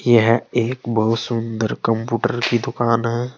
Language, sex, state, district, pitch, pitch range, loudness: Hindi, male, Uttar Pradesh, Saharanpur, 115 Hz, 115-120 Hz, -19 LUFS